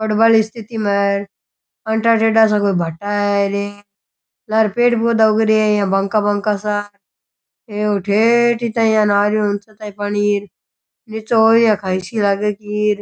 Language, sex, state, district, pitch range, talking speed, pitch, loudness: Rajasthani, male, Rajasthan, Churu, 205-220 Hz, 180 wpm, 210 Hz, -16 LUFS